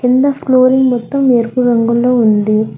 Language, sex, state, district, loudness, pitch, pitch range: Telugu, female, Telangana, Hyderabad, -12 LUFS, 250 Hz, 230-255 Hz